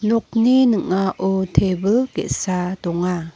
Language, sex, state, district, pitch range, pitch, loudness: Garo, female, Meghalaya, North Garo Hills, 180-230 Hz, 190 Hz, -19 LUFS